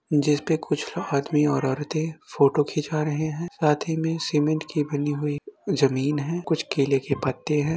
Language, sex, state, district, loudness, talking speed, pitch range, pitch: Hindi, male, Uttar Pradesh, Etah, -25 LUFS, 185 wpm, 145-160 Hz, 150 Hz